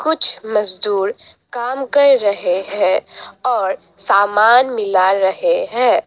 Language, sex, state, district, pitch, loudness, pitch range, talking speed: Hindi, female, Assam, Sonitpur, 215 Hz, -15 LUFS, 195-265 Hz, 110 wpm